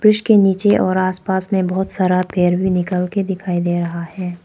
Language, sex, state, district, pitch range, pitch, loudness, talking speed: Hindi, female, Arunachal Pradesh, Papum Pare, 180-195 Hz, 185 Hz, -17 LUFS, 230 wpm